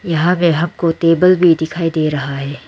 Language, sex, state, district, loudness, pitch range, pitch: Hindi, female, Arunachal Pradesh, Lower Dibang Valley, -14 LUFS, 155-175 Hz, 165 Hz